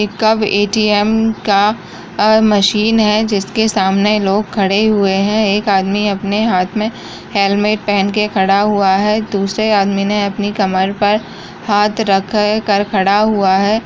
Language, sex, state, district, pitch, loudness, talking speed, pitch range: Kumaoni, female, Uttarakhand, Uttarkashi, 205 Hz, -14 LUFS, 150 wpm, 195-215 Hz